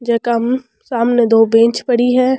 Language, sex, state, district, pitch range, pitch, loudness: Rajasthani, female, Rajasthan, Churu, 230-250 Hz, 235 Hz, -14 LUFS